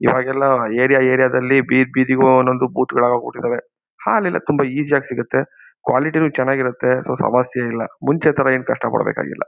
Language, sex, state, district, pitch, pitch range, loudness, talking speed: Kannada, male, Karnataka, Mysore, 130 Hz, 125-135 Hz, -17 LUFS, 160 wpm